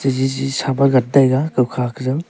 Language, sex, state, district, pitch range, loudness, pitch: Wancho, male, Arunachal Pradesh, Longding, 130-135 Hz, -17 LUFS, 135 Hz